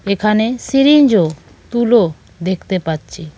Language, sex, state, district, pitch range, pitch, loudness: Bengali, female, West Bengal, Cooch Behar, 165-235 Hz, 200 Hz, -15 LUFS